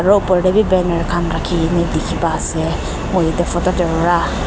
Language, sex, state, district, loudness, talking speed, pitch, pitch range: Nagamese, female, Nagaland, Kohima, -16 LUFS, 215 wpm, 175 Hz, 170-185 Hz